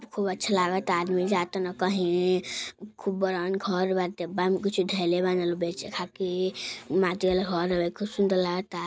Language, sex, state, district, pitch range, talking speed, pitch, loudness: Hindi, female, Uttar Pradesh, Deoria, 180-190 Hz, 185 wpm, 185 Hz, -27 LUFS